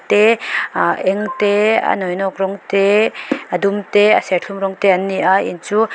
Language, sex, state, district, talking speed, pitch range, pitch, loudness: Mizo, female, Mizoram, Aizawl, 200 wpm, 190-210 Hz, 200 Hz, -16 LUFS